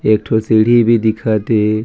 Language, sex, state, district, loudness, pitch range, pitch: Chhattisgarhi, male, Chhattisgarh, Raigarh, -13 LUFS, 110-115 Hz, 110 Hz